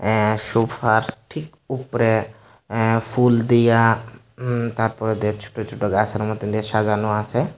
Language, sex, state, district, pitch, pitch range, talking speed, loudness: Bengali, male, Tripura, Unakoti, 110 Hz, 110-120 Hz, 135 wpm, -20 LUFS